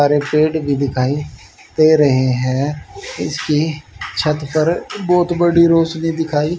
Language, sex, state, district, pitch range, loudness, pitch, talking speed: Hindi, male, Haryana, Rohtak, 140-160 Hz, -16 LUFS, 150 Hz, 135 wpm